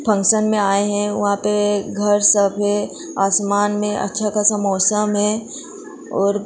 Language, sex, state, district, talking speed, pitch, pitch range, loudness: Hindi, female, Goa, North and South Goa, 160 wpm, 205 Hz, 205-210 Hz, -17 LUFS